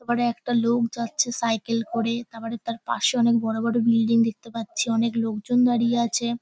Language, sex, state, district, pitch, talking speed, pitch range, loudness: Bengali, female, West Bengal, North 24 Parganas, 235 Hz, 175 wpm, 230-235 Hz, -23 LUFS